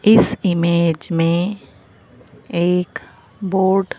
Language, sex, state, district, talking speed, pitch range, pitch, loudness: Hindi, female, Madhya Pradesh, Bhopal, 90 wpm, 165-190 Hz, 170 Hz, -17 LUFS